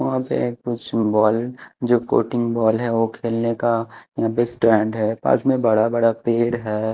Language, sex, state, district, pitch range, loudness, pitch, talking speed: Hindi, male, Chhattisgarh, Raipur, 110-120 Hz, -20 LUFS, 115 Hz, 180 wpm